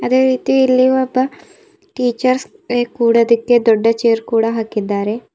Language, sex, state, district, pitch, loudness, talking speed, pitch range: Kannada, female, Karnataka, Bidar, 240 Hz, -15 LUFS, 125 wpm, 230-260 Hz